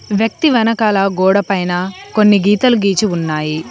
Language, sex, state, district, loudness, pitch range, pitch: Telugu, female, Telangana, Komaram Bheem, -14 LUFS, 185-215 Hz, 200 Hz